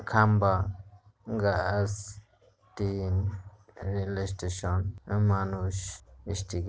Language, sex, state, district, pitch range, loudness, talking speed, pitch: Bengali, male, West Bengal, Paschim Medinipur, 95-100 Hz, -30 LUFS, 80 wpm, 100 Hz